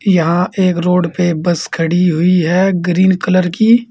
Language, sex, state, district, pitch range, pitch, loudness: Hindi, male, Uttar Pradesh, Saharanpur, 175-185 Hz, 180 Hz, -13 LUFS